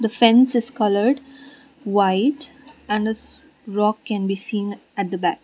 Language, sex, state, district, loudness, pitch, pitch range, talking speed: English, female, Sikkim, Gangtok, -20 LUFS, 225 Hz, 205-280 Hz, 155 wpm